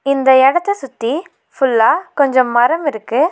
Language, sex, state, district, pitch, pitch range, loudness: Tamil, female, Tamil Nadu, Nilgiris, 270 Hz, 255-300 Hz, -14 LUFS